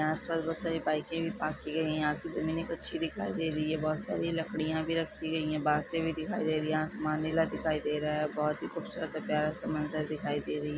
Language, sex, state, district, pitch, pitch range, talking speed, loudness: Hindi, female, Chhattisgarh, Korba, 155 Hz, 155-165 Hz, 260 wpm, -33 LUFS